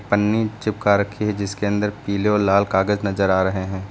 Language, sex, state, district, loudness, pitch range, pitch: Hindi, male, Uttar Pradesh, Lucknow, -20 LUFS, 100-105 Hz, 100 Hz